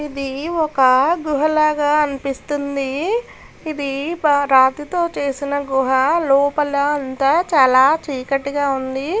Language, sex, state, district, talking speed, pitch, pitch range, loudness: Telugu, female, Karnataka, Bellary, 90 wpm, 285 Hz, 275-305 Hz, -17 LUFS